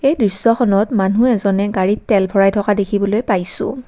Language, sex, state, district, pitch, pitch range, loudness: Assamese, female, Assam, Kamrup Metropolitan, 205 Hz, 195-225 Hz, -16 LUFS